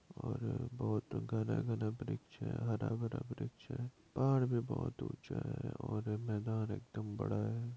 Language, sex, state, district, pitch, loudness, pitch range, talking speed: Hindi, male, Bihar, Madhepura, 125 Hz, -40 LUFS, 110-135 Hz, 140 wpm